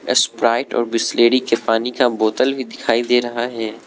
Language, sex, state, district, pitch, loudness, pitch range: Hindi, male, Arunachal Pradesh, Lower Dibang Valley, 120 Hz, -18 LUFS, 115-125 Hz